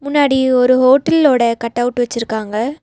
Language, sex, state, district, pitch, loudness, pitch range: Tamil, female, Tamil Nadu, Nilgiris, 255 Hz, -14 LUFS, 235-280 Hz